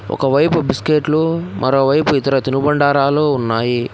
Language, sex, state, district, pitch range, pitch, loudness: Telugu, male, Telangana, Hyderabad, 135-150 Hz, 140 Hz, -15 LUFS